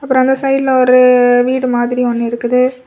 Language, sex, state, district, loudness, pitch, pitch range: Tamil, female, Tamil Nadu, Kanyakumari, -12 LUFS, 250 Hz, 245-260 Hz